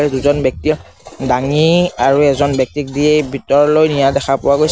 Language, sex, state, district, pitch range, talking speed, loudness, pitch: Assamese, male, Assam, Sonitpur, 135-150 Hz, 165 wpm, -14 LUFS, 145 Hz